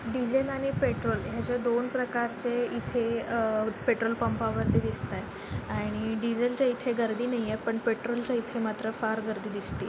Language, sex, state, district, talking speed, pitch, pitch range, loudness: Marathi, female, Maharashtra, Chandrapur, 150 wpm, 235 Hz, 220-245 Hz, -30 LUFS